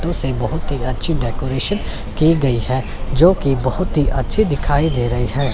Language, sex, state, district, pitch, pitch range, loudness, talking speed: Hindi, male, Chandigarh, Chandigarh, 140 Hz, 130-160 Hz, -17 LUFS, 175 wpm